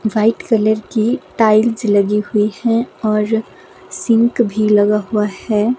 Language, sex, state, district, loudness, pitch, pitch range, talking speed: Hindi, female, Himachal Pradesh, Shimla, -15 LUFS, 215 Hz, 210-230 Hz, 135 wpm